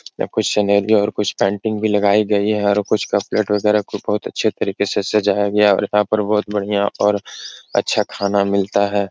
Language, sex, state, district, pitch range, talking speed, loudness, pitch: Hindi, male, Uttar Pradesh, Etah, 100-105 Hz, 205 wpm, -18 LUFS, 105 Hz